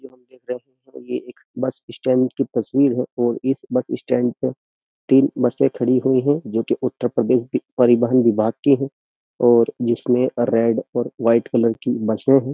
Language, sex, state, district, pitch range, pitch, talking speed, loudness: Hindi, male, Uttar Pradesh, Jyotiba Phule Nagar, 120-130 Hz, 125 Hz, 165 wpm, -19 LUFS